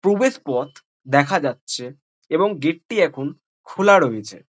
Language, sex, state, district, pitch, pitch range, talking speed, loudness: Bengali, male, West Bengal, Jhargram, 155 Hz, 135-200 Hz, 145 wpm, -20 LUFS